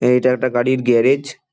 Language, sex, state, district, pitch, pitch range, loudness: Bengali, male, West Bengal, Dakshin Dinajpur, 130 Hz, 125-130 Hz, -16 LUFS